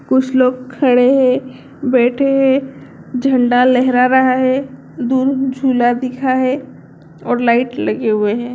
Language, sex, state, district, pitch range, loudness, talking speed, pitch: Hindi, female, Bihar, Sitamarhi, 250-265 Hz, -14 LUFS, 125 wpm, 255 Hz